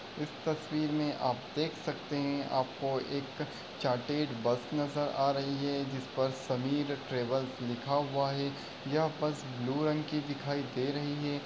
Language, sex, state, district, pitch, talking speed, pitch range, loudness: Hindi, male, Uttar Pradesh, Varanasi, 140 Hz, 160 wpm, 130-150 Hz, -34 LUFS